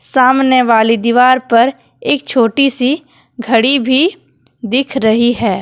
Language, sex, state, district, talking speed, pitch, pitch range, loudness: Hindi, female, Jharkhand, Deoghar, 130 wpm, 255 Hz, 235-270 Hz, -12 LUFS